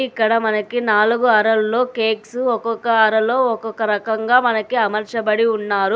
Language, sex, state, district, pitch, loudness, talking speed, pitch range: Telugu, female, Telangana, Hyderabad, 225 Hz, -17 LUFS, 120 wpm, 215-235 Hz